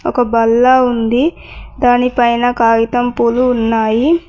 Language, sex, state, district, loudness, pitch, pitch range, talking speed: Telugu, female, Telangana, Mahabubabad, -13 LUFS, 245 Hz, 230-250 Hz, 100 wpm